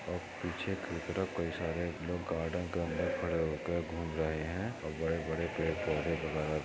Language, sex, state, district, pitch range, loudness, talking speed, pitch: Hindi, male, Maharashtra, Solapur, 80-85 Hz, -36 LUFS, 180 wpm, 85 Hz